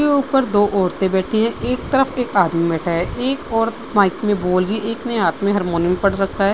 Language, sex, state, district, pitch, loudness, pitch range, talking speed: Hindi, female, Bihar, Vaishali, 205 Hz, -18 LUFS, 185-235 Hz, 250 wpm